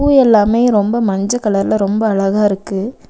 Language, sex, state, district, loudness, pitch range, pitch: Tamil, female, Tamil Nadu, Nilgiris, -14 LUFS, 200-235 Hz, 210 Hz